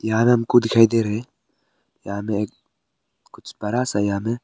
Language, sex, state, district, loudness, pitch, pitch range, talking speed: Hindi, male, Arunachal Pradesh, Papum Pare, -20 LUFS, 115 Hz, 105-120 Hz, 175 wpm